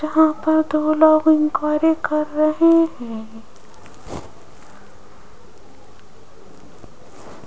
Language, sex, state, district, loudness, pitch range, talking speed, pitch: Hindi, female, Rajasthan, Jaipur, -17 LUFS, 300-315 Hz, 65 wpm, 310 Hz